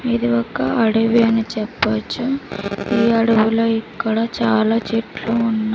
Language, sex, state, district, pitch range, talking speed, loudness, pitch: Telugu, female, Andhra Pradesh, Sri Satya Sai, 220-230 Hz, 125 wpm, -18 LUFS, 225 Hz